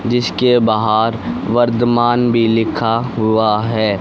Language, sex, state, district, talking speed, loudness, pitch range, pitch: Hindi, male, Haryana, Rohtak, 105 wpm, -15 LUFS, 110-120 Hz, 115 Hz